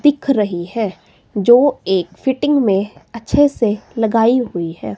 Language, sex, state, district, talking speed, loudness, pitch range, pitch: Hindi, female, Himachal Pradesh, Shimla, 145 wpm, -16 LUFS, 190-260 Hz, 225 Hz